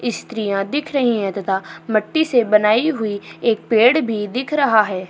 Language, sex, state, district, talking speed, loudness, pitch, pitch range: Hindi, female, Uttar Pradesh, Jyotiba Phule Nagar, 175 wpm, -18 LUFS, 220 Hz, 205-255 Hz